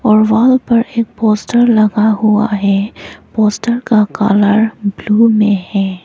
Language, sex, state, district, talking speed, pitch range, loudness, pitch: Hindi, female, Arunachal Pradesh, Papum Pare, 140 wpm, 205-230 Hz, -12 LUFS, 215 Hz